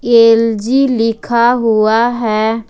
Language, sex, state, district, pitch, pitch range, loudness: Hindi, female, Jharkhand, Ranchi, 230 Hz, 225-240 Hz, -12 LUFS